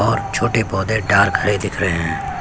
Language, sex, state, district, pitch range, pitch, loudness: Hindi, male, Chhattisgarh, Sukma, 95-110 Hz, 100 Hz, -18 LUFS